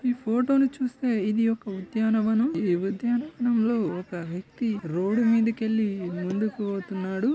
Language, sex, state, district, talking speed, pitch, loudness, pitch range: Telugu, male, Telangana, Nalgonda, 130 wpm, 220 Hz, -26 LUFS, 195-235 Hz